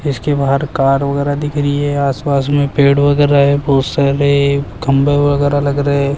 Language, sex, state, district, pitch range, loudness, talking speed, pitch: Hindi, male, Rajasthan, Jaipur, 140-145 Hz, -14 LUFS, 185 wpm, 140 Hz